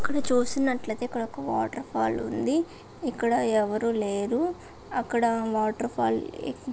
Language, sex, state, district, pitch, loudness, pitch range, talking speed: Telugu, female, Andhra Pradesh, Visakhapatnam, 235 Hz, -27 LUFS, 215-255 Hz, 125 wpm